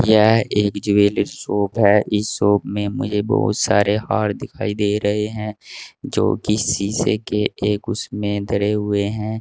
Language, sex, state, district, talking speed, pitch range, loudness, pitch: Hindi, male, Uttar Pradesh, Saharanpur, 155 wpm, 100-105 Hz, -19 LUFS, 105 Hz